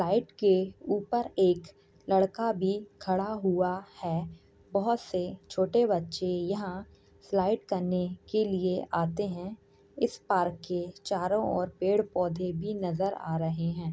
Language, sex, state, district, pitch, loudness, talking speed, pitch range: Hindi, female, Uttar Pradesh, Jyotiba Phule Nagar, 185 Hz, -30 LUFS, 135 wpm, 180-200 Hz